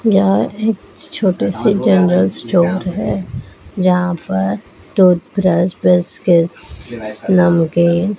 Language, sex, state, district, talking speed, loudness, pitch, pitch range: Hindi, male, Madhya Pradesh, Dhar, 90 wpm, -15 LUFS, 175 Hz, 115-185 Hz